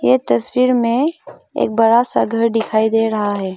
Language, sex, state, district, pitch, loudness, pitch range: Hindi, female, Arunachal Pradesh, Longding, 225 Hz, -16 LUFS, 205-240 Hz